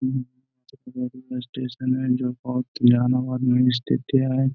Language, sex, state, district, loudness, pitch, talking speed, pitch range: Hindi, male, Bihar, Gaya, -23 LUFS, 125 Hz, 55 wpm, 125-130 Hz